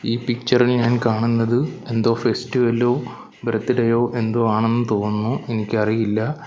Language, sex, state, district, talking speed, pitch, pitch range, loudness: Malayalam, male, Kerala, Kollam, 110 wpm, 115 Hz, 115-120 Hz, -20 LUFS